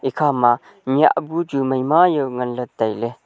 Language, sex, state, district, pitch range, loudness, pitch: Wancho, male, Arunachal Pradesh, Longding, 125-150 Hz, -19 LUFS, 135 Hz